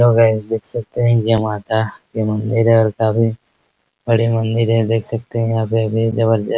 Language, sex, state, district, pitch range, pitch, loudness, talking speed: Hindi, male, Bihar, Araria, 110-115 Hz, 115 Hz, -17 LUFS, 200 wpm